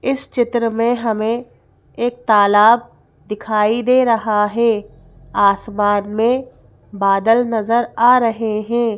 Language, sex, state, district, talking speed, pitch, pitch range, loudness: Hindi, female, Madhya Pradesh, Bhopal, 115 wpm, 225 Hz, 210-240 Hz, -16 LUFS